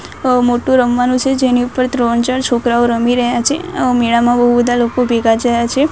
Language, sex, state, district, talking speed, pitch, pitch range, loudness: Gujarati, female, Gujarat, Gandhinagar, 205 wpm, 245 Hz, 240-255 Hz, -13 LUFS